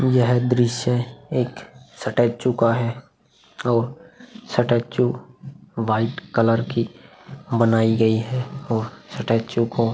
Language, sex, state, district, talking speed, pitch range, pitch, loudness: Hindi, male, Uttar Pradesh, Hamirpur, 110 wpm, 115-125 Hz, 120 Hz, -22 LUFS